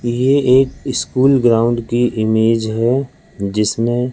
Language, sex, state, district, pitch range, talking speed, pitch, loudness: Hindi, male, Madhya Pradesh, Katni, 115-130 Hz, 115 wpm, 120 Hz, -15 LUFS